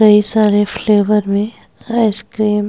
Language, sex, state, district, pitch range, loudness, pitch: Hindi, female, Uttar Pradesh, Hamirpur, 205-215 Hz, -14 LUFS, 210 Hz